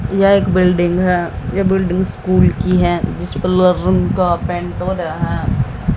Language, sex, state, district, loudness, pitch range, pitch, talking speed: Hindi, female, Haryana, Jhajjar, -16 LUFS, 180-190 Hz, 185 Hz, 160 wpm